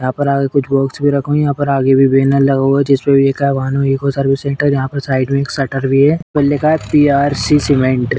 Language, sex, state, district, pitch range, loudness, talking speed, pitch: Hindi, female, Uttar Pradesh, Etah, 135-145 Hz, -13 LUFS, 270 wpm, 140 Hz